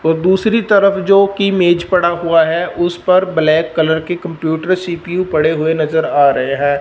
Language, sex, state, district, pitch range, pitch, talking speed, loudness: Hindi, male, Punjab, Fazilka, 160-185 Hz, 170 Hz, 195 wpm, -14 LUFS